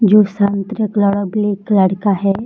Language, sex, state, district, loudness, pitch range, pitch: Hindi, female, Bihar, Jamui, -15 LUFS, 200-210 Hz, 200 Hz